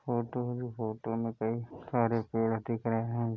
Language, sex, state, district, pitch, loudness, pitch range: Hindi, male, Bihar, East Champaran, 115 Hz, -33 LUFS, 115-120 Hz